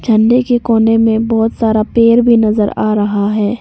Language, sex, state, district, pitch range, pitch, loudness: Hindi, female, Arunachal Pradesh, Papum Pare, 215-230 Hz, 225 Hz, -12 LUFS